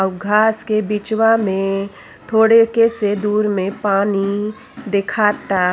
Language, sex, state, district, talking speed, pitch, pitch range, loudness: Bhojpuri, female, Uttar Pradesh, Ghazipur, 125 wpm, 210 Hz, 195-220 Hz, -17 LUFS